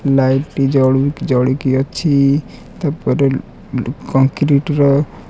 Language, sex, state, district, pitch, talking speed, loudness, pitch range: Odia, male, Odisha, Khordha, 140 Hz, 90 wpm, -15 LUFS, 135-145 Hz